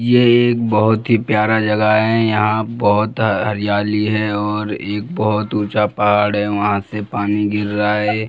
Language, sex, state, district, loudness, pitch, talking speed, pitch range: Hindi, male, Bihar, Jamui, -16 LUFS, 105 Hz, 175 wpm, 105-110 Hz